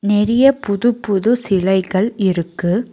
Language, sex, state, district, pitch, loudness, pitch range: Tamil, female, Tamil Nadu, Nilgiris, 205 Hz, -16 LUFS, 190-235 Hz